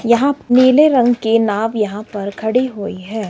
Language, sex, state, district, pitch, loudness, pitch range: Hindi, male, Himachal Pradesh, Shimla, 225 Hz, -15 LUFS, 210-250 Hz